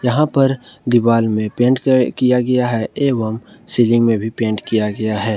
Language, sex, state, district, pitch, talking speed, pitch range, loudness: Hindi, male, Jharkhand, Ranchi, 120 Hz, 190 wpm, 110-125 Hz, -16 LUFS